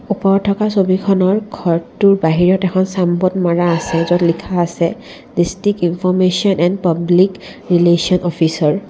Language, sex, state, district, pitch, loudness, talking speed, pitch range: Assamese, female, Assam, Kamrup Metropolitan, 185 Hz, -15 LUFS, 130 wpm, 175-195 Hz